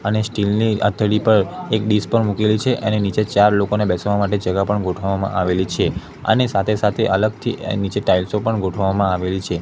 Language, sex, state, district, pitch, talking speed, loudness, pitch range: Gujarati, male, Gujarat, Gandhinagar, 105 Hz, 195 wpm, -18 LUFS, 95-110 Hz